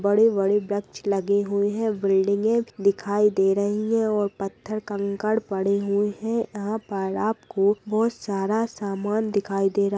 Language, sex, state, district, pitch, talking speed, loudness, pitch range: Hindi, female, Bihar, Purnia, 205 Hz, 160 wpm, -24 LUFS, 200-215 Hz